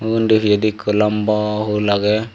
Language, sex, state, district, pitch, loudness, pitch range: Chakma, male, Tripura, Dhalai, 105 Hz, -17 LUFS, 105-110 Hz